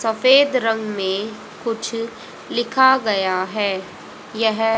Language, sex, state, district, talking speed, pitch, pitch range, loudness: Hindi, female, Haryana, Jhajjar, 100 wpm, 225 Hz, 210-235 Hz, -19 LUFS